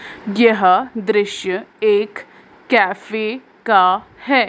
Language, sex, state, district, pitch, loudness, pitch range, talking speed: Hindi, female, Madhya Pradesh, Bhopal, 220 Hz, -17 LUFS, 200-250 Hz, 80 wpm